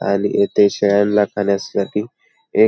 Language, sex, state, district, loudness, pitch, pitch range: Marathi, male, Maharashtra, Pune, -17 LUFS, 100 Hz, 100-105 Hz